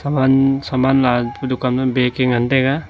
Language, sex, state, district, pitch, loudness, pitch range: Wancho, male, Arunachal Pradesh, Longding, 130 Hz, -16 LUFS, 125-135 Hz